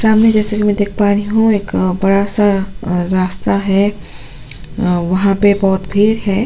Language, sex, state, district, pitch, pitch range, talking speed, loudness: Hindi, female, Goa, North and South Goa, 200 Hz, 185-210 Hz, 185 wpm, -14 LUFS